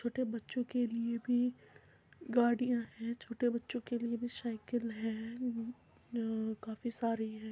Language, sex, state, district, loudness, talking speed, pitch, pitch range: Hindi, male, Uttar Pradesh, Muzaffarnagar, -37 LUFS, 145 wpm, 235 Hz, 230-245 Hz